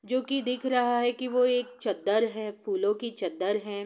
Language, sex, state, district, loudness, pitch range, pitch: Hindi, female, Bihar, Sitamarhi, -28 LUFS, 205-250 Hz, 230 Hz